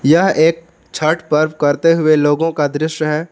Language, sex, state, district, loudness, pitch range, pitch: Hindi, male, Jharkhand, Palamu, -15 LUFS, 150-165 Hz, 155 Hz